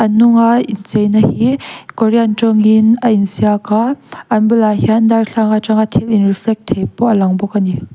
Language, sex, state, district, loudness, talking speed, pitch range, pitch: Mizo, female, Mizoram, Aizawl, -13 LUFS, 190 wpm, 210-230 Hz, 220 Hz